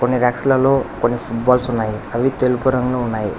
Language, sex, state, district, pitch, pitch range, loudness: Telugu, male, Telangana, Hyderabad, 125 Hz, 115-130 Hz, -17 LUFS